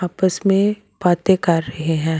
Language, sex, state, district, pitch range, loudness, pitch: Hindi, female, Delhi, New Delhi, 160-195 Hz, -18 LUFS, 180 Hz